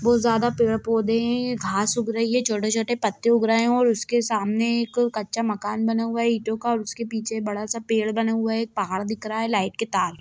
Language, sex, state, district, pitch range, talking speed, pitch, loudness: Hindi, female, Bihar, Jamui, 215-235 Hz, 245 wpm, 225 Hz, -23 LUFS